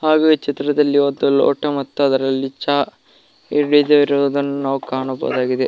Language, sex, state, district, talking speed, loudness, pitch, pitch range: Kannada, male, Karnataka, Koppal, 115 wpm, -17 LUFS, 140 Hz, 135-145 Hz